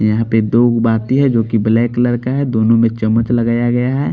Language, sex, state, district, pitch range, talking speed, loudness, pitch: Hindi, male, Bihar, Patna, 115-120 Hz, 205 wpm, -14 LUFS, 115 Hz